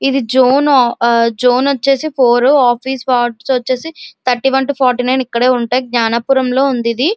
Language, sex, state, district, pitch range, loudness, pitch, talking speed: Telugu, female, Andhra Pradesh, Visakhapatnam, 245-270 Hz, -13 LUFS, 255 Hz, 140 wpm